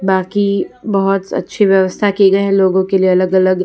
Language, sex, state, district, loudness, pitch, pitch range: Hindi, female, Gujarat, Valsad, -14 LUFS, 195 Hz, 185-195 Hz